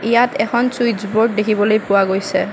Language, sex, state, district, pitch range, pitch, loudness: Assamese, female, Assam, Kamrup Metropolitan, 200-235 Hz, 215 Hz, -16 LUFS